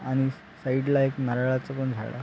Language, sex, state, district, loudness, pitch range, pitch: Marathi, male, Maharashtra, Sindhudurg, -27 LUFS, 130-135 Hz, 130 Hz